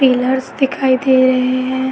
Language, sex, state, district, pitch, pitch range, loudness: Hindi, female, Uttar Pradesh, Etah, 260 Hz, 255-260 Hz, -15 LUFS